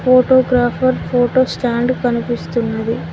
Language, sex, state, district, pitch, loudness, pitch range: Telugu, female, Telangana, Mahabubabad, 245 Hz, -16 LUFS, 235-255 Hz